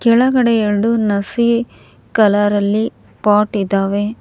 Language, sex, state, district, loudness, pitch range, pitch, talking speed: Kannada, female, Karnataka, Bangalore, -15 LUFS, 205-230 Hz, 210 Hz, 100 wpm